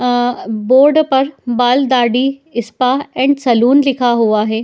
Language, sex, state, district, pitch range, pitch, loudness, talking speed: Hindi, female, Uttar Pradesh, Etah, 240-270 Hz, 250 Hz, -13 LUFS, 140 wpm